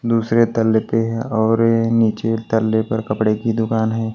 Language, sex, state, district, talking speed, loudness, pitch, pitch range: Hindi, male, Maharashtra, Washim, 175 wpm, -18 LUFS, 115 Hz, 110-115 Hz